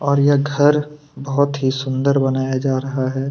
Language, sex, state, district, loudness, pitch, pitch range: Hindi, male, Chhattisgarh, Kabirdham, -18 LUFS, 135 Hz, 130-140 Hz